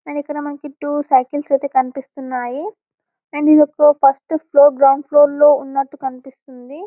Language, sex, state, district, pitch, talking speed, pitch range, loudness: Telugu, female, Telangana, Karimnagar, 285 Hz, 150 wpm, 270-295 Hz, -15 LUFS